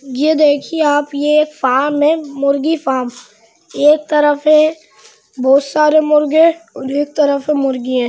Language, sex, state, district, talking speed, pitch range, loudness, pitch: Hindi, female, Bihar, Muzaffarpur, 155 wpm, 265-305 Hz, -14 LUFS, 290 Hz